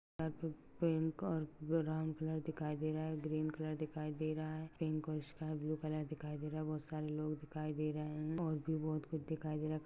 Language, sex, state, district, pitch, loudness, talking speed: Hindi, male, Maharashtra, Pune, 155 Hz, -41 LUFS, 225 wpm